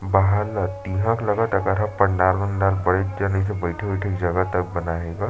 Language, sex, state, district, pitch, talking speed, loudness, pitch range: Chhattisgarhi, male, Chhattisgarh, Sarguja, 95 Hz, 170 wpm, -22 LUFS, 95-100 Hz